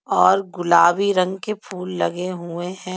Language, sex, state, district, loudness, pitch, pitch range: Hindi, female, Jharkhand, Ranchi, -20 LUFS, 185 Hz, 175-190 Hz